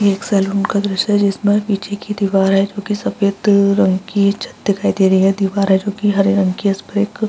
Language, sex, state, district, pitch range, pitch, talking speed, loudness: Hindi, female, Bihar, Araria, 195-205 Hz, 200 Hz, 270 wpm, -16 LUFS